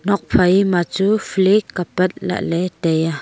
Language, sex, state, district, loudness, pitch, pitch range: Wancho, female, Arunachal Pradesh, Longding, -17 LUFS, 185 Hz, 170-195 Hz